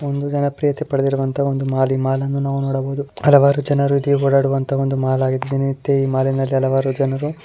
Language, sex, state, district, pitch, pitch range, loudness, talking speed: Kannada, female, Karnataka, Dakshina Kannada, 135 Hz, 135-140 Hz, -18 LUFS, 145 wpm